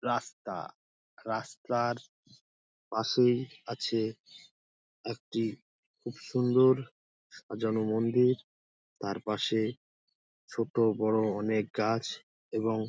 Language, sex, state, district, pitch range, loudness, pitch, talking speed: Bengali, male, West Bengal, Dakshin Dinajpur, 105-120 Hz, -31 LUFS, 110 Hz, 75 wpm